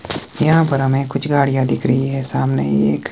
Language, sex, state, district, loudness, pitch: Hindi, male, Himachal Pradesh, Shimla, -17 LUFS, 135 Hz